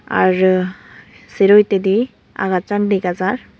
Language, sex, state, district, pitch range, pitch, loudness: Chakma, female, Tripura, Unakoti, 185-205 Hz, 195 Hz, -16 LUFS